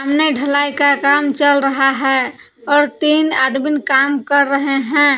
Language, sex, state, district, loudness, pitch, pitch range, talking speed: Hindi, female, Jharkhand, Palamu, -14 LUFS, 285 Hz, 275-290 Hz, 160 wpm